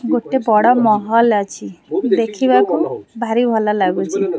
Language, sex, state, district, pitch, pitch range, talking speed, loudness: Odia, female, Odisha, Khordha, 220 Hz, 200-235 Hz, 110 wpm, -16 LUFS